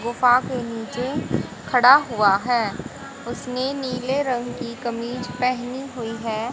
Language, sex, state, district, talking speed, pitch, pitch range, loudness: Hindi, female, Haryana, Charkhi Dadri, 130 wpm, 245 Hz, 235-255 Hz, -22 LUFS